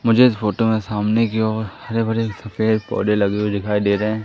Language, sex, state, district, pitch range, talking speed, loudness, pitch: Hindi, male, Madhya Pradesh, Katni, 105-115 Hz, 255 wpm, -19 LUFS, 110 Hz